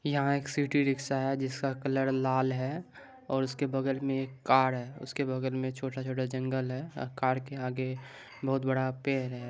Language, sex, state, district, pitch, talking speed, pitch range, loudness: Maithili, male, Bihar, Supaul, 130 Hz, 195 wpm, 130-135 Hz, -31 LUFS